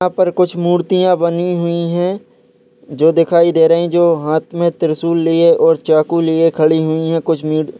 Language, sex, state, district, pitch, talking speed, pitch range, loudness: Hindi, male, Chhattisgarh, Kabirdham, 170 Hz, 185 wpm, 160-175 Hz, -14 LUFS